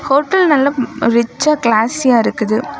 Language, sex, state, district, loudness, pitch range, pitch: Tamil, female, Tamil Nadu, Kanyakumari, -14 LUFS, 230-295 Hz, 255 Hz